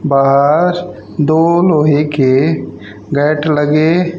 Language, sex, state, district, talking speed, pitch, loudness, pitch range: Hindi, male, Haryana, Rohtak, 85 wpm, 150 Hz, -12 LUFS, 135-160 Hz